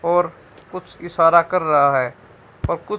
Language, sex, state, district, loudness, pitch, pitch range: Hindi, female, Haryana, Charkhi Dadri, -18 LUFS, 170 Hz, 155-180 Hz